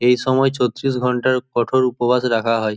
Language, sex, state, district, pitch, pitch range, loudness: Bengali, male, West Bengal, Jhargram, 125 Hz, 120-130 Hz, -18 LUFS